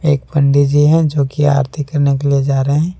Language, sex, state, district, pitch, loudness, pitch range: Hindi, male, Jharkhand, Deoghar, 145 Hz, -14 LUFS, 140-150 Hz